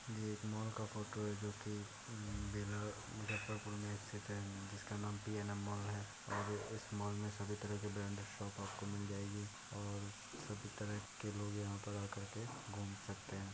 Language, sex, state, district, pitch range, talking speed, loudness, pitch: Hindi, male, Bihar, Muzaffarpur, 100-105 Hz, 180 wpm, -46 LUFS, 105 Hz